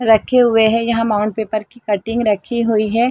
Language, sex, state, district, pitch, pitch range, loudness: Hindi, female, Chhattisgarh, Rajnandgaon, 220 Hz, 215-235 Hz, -16 LUFS